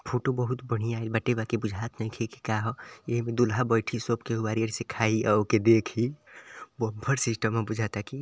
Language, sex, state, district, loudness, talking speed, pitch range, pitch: Bhojpuri, male, Uttar Pradesh, Ghazipur, -28 LUFS, 190 wpm, 110-120 Hz, 115 Hz